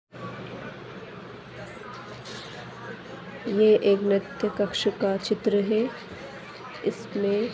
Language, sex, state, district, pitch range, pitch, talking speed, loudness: Hindi, female, Rajasthan, Nagaur, 200-215 Hz, 210 Hz, 65 wpm, -25 LUFS